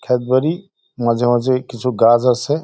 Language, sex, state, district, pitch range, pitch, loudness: Bengali, male, West Bengal, Jalpaiguri, 120-130 Hz, 125 Hz, -16 LUFS